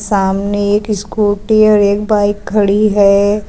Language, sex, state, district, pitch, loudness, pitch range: Hindi, female, Uttar Pradesh, Lucknow, 205 Hz, -12 LUFS, 200-210 Hz